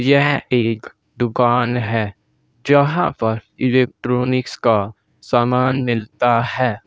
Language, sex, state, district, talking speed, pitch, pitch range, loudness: Hindi, male, Uttar Pradesh, Saharanpur, 95 wpm, 120 Hz, 115-130 Hz, -18 LUFS